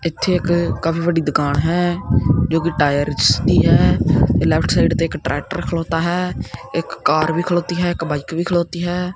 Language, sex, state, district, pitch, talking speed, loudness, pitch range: Punjabi, male, Punjab, Kapurthala, 170 Hz, 185 wpm, -18 LUFS, 155-175 Hz